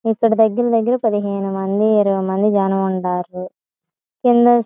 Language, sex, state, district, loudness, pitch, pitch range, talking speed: Telugu, female, Andhra Pradesh, Guntur, -17 LUFS, 205 Hz, 195-230 Hz, 115 wpm